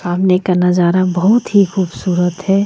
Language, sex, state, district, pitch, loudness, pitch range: Hindi, female, Jharkhand, Ranchi, 185 Hz, -14 LUFS, 180-195 Hz